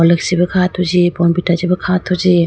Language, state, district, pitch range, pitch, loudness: Idu Mishmi, Arunachal Pradesh, Lower Dibang Valley, 175-180 Hz, 180 Hz, -14 LUFS